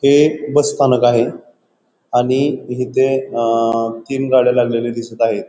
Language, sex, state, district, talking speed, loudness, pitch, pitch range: Marathi, male, Maharashtra, Pune, 130 wpm, -16 LUFS, 125 Hz, 115-135 Hz